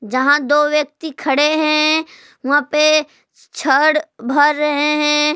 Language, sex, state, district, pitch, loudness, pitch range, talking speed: Hindi, female, Jharkhand, Palamu, 300 Hz, -15 LUFS, 290-305 Hz, 125 wpm